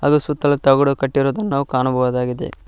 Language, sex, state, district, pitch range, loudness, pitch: Kannada, male, Karnataka, Koppal, 130-145 Hz, -18 LUFS, 135 Hz